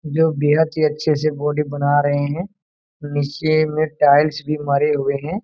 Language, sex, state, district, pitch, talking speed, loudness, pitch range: Hindi, male, Bihar, Saran, 150 Hz, 175 wpm, -18 LUFS, 145-155 Hz